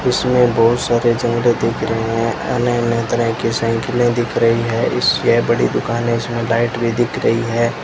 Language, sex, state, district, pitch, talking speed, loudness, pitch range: Hindi, male, Rajasthan, Bikaner, 115 Hz, 190 wpm, -16 LUFS, 115-120 Hz